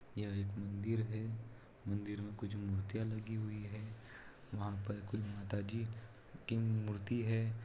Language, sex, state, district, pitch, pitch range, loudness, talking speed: Hindi, male, Bihar, Araria, 110 Hz, 100-115 Hz, -42 LUFS, 140 wpm